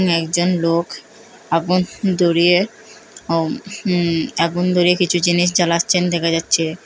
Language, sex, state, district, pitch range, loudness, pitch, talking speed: Bengali, female, Assam, Hailakandi, 170-180 Hz, -17 LUFS, 175 Hz, 115 wpm